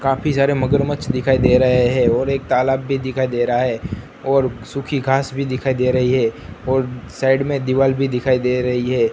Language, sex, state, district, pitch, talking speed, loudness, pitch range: Hindi, male, Gujarat, Gandhinagar, 130 Hz, 205 wpm, -18 LUFS, 125-135 Hz